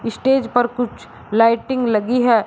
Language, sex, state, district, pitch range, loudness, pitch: Hindi, male, Uttar Pradesh, Shamli, 230-245 Hz, -18 LUFS, 240 Hz